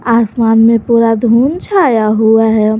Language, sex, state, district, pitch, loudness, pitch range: Hindi, female, Jharkhand, Garhwa, 230 Hz, -10 LUFS, 220-235 Hz